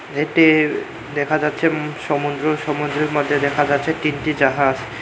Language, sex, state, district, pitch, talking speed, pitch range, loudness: Bengali, male, Tripura, Unakoti, 150 Hz, 130 wpm, 145-155 Hz, -19 LUFS